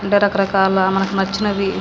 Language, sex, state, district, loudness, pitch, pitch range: Telugu, female, Andhra Pradesh, Srikakulam, -17 LUFS, 195 Hz, 195-200 Hz